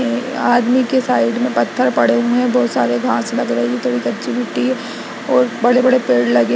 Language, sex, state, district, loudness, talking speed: Hindi, female, Bihar, Lakhisarai, -16 LUFS, 200 wpm